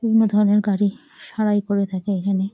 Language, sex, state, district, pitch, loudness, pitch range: Bengali, female, West Bengal, Jalpaiguri, 205 Hz, -20 LUFS, 195-210 Hz